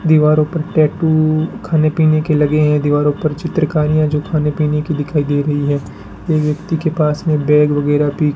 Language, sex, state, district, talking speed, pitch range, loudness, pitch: Hindi, male, Rajasthan, Bikaner, 200 wpm, 150-155 Hz, -15 LUFS, 150 Hz